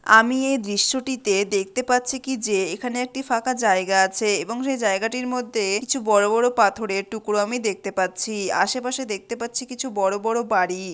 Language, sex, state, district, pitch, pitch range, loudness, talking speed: Bengali, female, West Bengal, Malda, 225 Hz, 200-250 Hz, -22 LUFS, 165 wpm